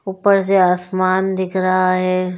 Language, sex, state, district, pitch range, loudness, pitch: Hindi, female, Delhi, New Delhi, 185-190 Hz, -16 LUFS, 185 Hz